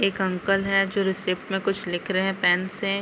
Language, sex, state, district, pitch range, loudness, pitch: Hindi, female, Chhattisgarh, Bilaspur, 185-195 Hz, -24 LUFS, 195 Hz